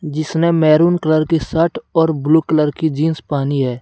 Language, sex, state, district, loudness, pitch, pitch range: Hindi, male, Jharkhand, Deoghar, -16 LUFS, 155 Hz, 150-165 Hz